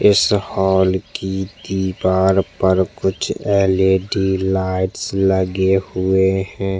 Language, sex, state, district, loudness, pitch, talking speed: Hindi, male, Chhattisgarh, Jashpur, -18 LUFS, 95 Hz, 95 wpm